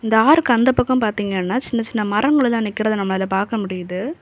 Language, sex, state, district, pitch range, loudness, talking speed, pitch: Tamil, female, Tamil Nadu, Kanyakumari, 200-250 Hz, -18 LUFS, 170 wpm, 220 Hz